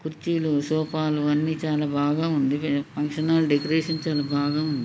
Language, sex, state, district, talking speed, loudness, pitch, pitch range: Telugu, male, Telangana, Nalgonda, 160 wpm, -24 LUFS, 155 Hz, 145-155 Hz